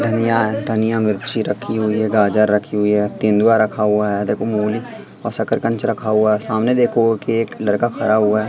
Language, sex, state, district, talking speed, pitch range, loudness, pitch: Hindi, female, Madhya Pradesh, Katni, 205 wpm, 105-115 Hz, -17 LUFS, 110 Hz